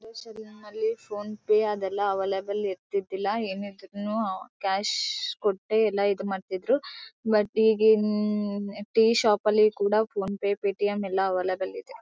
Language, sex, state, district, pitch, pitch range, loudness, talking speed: Kannada, female, Karnataka, Bellary, 205 Hz, 195-220 Hz, -26 LUFS, 110 wpm